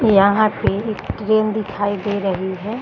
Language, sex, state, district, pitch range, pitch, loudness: Hindi, female, Bihar, Bhagalpur, 200-215 Hz, 205 Hz, -19 LUFS